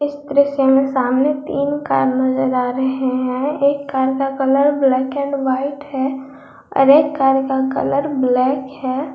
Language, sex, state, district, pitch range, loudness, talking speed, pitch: Hindi, female, Jharkhand, Garhwa, 260-280 Hz, -17 LUFS, 165 wpm, 270 Hz